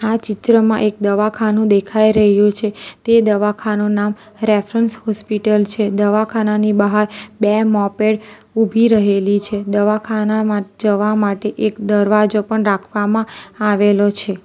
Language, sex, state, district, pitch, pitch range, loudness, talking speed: Gujarati, female, Gujarat, Valsad, 210 Hz, 205-215 Hz, -16 LUFS, 120 wpm